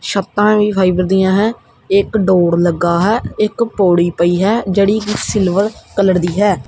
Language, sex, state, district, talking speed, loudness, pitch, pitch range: Punjabi, male, Punjab, Kapurthala, 170 wpm, -14 LUFS, 195 Hz, 180-210 Hz